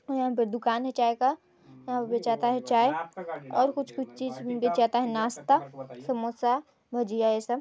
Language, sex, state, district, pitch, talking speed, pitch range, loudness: Hindi, female, Chhattisgarh, Balrampur, 240 Hz, 195 wpm, 230-255 Hz, -28 LUFS